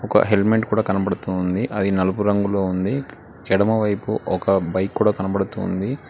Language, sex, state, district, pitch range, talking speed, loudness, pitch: Telugu, male, Telangana, Hyderabad, 95-110 Hz, 175 wpm, -21 LUFS, 100 Hz